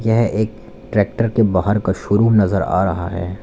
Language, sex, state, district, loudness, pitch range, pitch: Hindi, male, Uttar Pradesh, Lalitpur, -17 LUFS, 95-110 Hz, 105 Hz